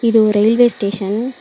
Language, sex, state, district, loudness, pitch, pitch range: Tamil, female, Tamil Nadu, Chennai, -14 LUFS, 220 Hz, 205-240 Hz